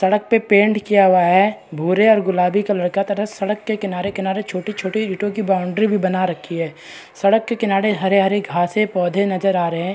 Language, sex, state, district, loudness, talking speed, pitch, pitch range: Hindi, female, Bihar, East Champaran, -18 LUFS, 210 wpm, 195 Hz, 185-210 Hz